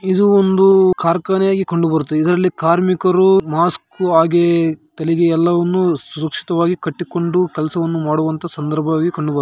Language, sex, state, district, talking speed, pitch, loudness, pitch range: Kannada, male, Karnataka, Raichur, 100 wpm, 170 Hz, -16 LUFS, 160-185 Hz